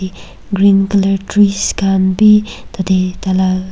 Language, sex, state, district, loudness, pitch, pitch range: Nagamese, female, Nagaland, Kohima, -13 LUFS, 195 Hz, 190-200 Hz